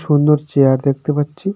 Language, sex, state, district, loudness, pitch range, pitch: Bengali, male, West Bengal, Darjeeling, -15 LUFS, 140-150 Hz, 150 Hz